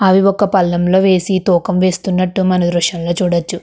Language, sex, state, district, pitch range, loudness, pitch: Telugu, female, Andhra Pradesh, Krishna, 175-190 Hz, -14 LUFS, 185 Hz